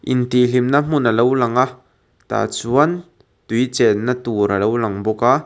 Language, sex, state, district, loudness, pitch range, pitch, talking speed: Mizo, male, Mizoram, Aizawl, -17 LUFS, 115-130 Hz, 125 Hz, 210 wpm